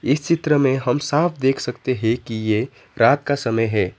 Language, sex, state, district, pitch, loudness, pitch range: Hindi, male, West Bengal, Alipurduar, 135 Hz, -20 LUFS, 115-145 Hz